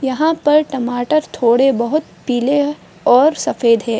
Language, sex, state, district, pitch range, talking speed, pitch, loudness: Hindi, female, Bihar, Madhepura, 245-300 Hz, 150 wpm, 270 Hz, -15 LUFS